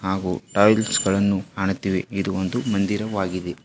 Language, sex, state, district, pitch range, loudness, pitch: Kannada, female, Karnataka, Bidar, 95-100 Hz, -22 LUFS, 95 Hz